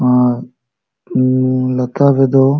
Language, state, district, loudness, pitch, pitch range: Santali, Jharkhand, Sahebganj, -14 LUFS, 130 Hz, 125-135 Hz